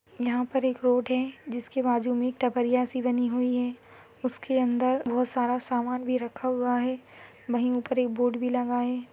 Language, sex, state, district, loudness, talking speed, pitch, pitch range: Hindi, female, Chhattisgarh, Sarguja, -27 LUFS, 195 wpm, 250 Hz, 245-255 Hz